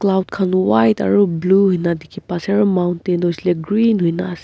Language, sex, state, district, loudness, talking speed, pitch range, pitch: Nagamese, female, Nagaland, Kohima, -17 LUFS, 230 wpm, 170-195 Hz, 180 Hz